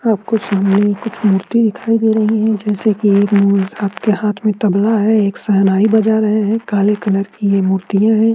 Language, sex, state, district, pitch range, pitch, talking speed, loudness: Hindi, male, Uttarakhand, Tehri Garhwal, 200-220 Hz, 210 Hz, 200 wpm, -14 LUFS